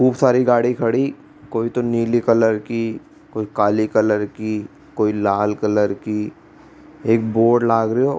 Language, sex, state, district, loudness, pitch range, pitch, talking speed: Rajasthani, male, Rajasthan, Churu, -19 LUFS, 105-120 Hz, 115 Hz, 155 wpm